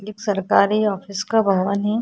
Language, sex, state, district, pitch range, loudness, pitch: Hindi, female, Maharashtra, Chandrapur, 200-215 Hz, -20 LUFS, 205 Hz